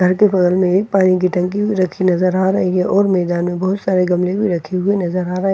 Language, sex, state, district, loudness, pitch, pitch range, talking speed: Hindi, female, Bihar, Katihar, -16 LUFS, 185 Hz, 180-195 Hz, 290 wpm